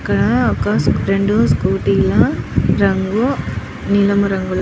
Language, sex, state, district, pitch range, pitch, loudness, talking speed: Telugu, female, Andhra Pradesh, Chittoor, 190-200 Hz, 200 Hz, -16 LUFS, 105 wpm